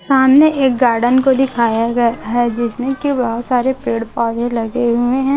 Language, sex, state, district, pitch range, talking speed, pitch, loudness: Hindi, female, Chhattisgarh, Raipur, 235-265 Hz, 180 wpm, 245 Hz, -15 LUFS